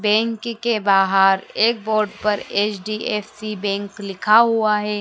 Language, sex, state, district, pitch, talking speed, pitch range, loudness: Hindi, female, Madhya Pradesh, Dhar, 210 Hz, 130 wpm, 200-220 Hz, -19 LUFS